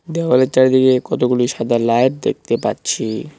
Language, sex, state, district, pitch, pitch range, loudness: Bengali, male, West Bengal, Cooch Behar, 130 Hz, 120-130 Hz, -16 LUFS